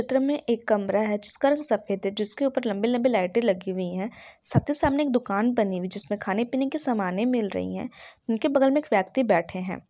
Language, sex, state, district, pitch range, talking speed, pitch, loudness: Hindi, female, Bihar, Jahanabad, 200-265 Hz, 255 wpm, 220 Hz, -25 LUFS